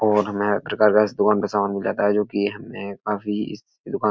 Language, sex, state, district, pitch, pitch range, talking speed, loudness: Hindi, male, Uttar Pradesh, Etah, 105 Hz, 100-105 Hz, 275 wpm, -22 LUFS